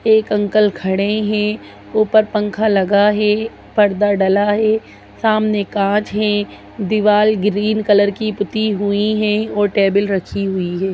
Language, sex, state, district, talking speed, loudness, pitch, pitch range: Hindi, female, Bihar, Lakhisarai, 140 wpm, -16 LUFS, 210 Hz, 200-215 Hz